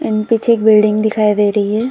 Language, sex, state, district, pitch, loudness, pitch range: Hindi, female, Uttar Pradesh, Budaun, 215 Hz, -13 LUFS, 210-220 Hz